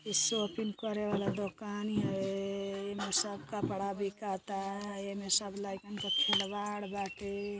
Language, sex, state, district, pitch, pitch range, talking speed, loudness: Bhojpuri, female, Uttar Pradesh, Deoria, 200 Hz, 195-205 Hz, 125 wpm, -35 LUFS